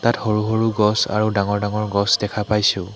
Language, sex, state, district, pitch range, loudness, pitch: Assamese, male, Assam, Hailakandi, 105-110 Hz, -19 LUFS, 105 Hz